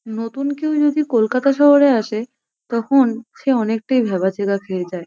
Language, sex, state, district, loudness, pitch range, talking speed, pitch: Bengali, female, West Bengal, North 24 Parganas, -18 LUFS, 220-275 Hz, 155 wpm, 235 Hz